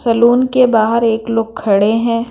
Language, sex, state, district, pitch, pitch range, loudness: Hindi, female, Bihar, Patna, 230 Hz, 225-235 Hz, -13 LUFS